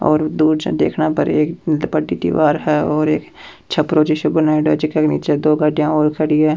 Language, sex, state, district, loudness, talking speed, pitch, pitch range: Rajasthani, male, Rajasthan, Churu, -16 LUFS, 200 wpm, 155 Hz, 150-155 Hz